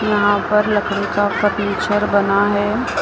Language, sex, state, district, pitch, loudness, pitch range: Hindi, female, Maharashtra, Mumbai Suburban, 205 Hz, -17 LUFS, 205-210 Hz